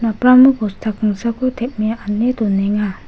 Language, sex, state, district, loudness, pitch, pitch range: Garo, female, Meghalaya, West Garo Hills, -16 LUFS, 220 Hz, 210-245 Hz